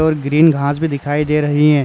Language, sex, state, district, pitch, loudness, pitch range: Hindi, male, Uttar Pradesh, Jalaun, 150 Hz, -15 LUFS, 145-155 Hz